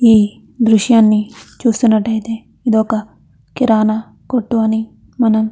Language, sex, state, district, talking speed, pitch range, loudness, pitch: Telugu, female, Andhra Pradesh, Anantapur, 110 wpm, 220-230 Hz, -15 LUFS, 220 Hz